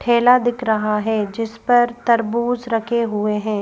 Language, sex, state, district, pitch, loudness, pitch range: Hindi, female, Madhya Pradesh, Bhopal, 230 Hz, -18 LUFS, 215-240 Hz